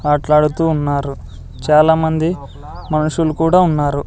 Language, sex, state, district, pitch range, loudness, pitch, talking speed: Telugu, male, Andhra Pradesh, Sri Satya Sai, 145-160 Hz, -15 LUFS, 150 Hz, 90 wpm